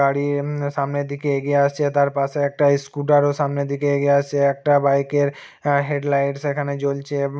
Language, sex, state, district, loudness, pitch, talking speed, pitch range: Bengali, male, West Bengal, Purulia, -20 LUFS, 140 Hz, 195 wpm, 140-145 Hz